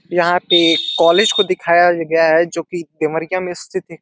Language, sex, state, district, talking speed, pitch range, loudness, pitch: Hindi, male, Uttar Pradesh, Deoria, 195 wpm, 165-180 Hz, -15 LUFS, 170 Hz